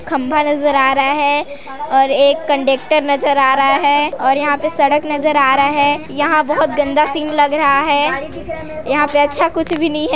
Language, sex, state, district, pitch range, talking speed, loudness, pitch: Hindi, female, Chhattisgarh, Sarguja, 280-305 Hz, 200 wpm, -14 LUFS, 290 Hz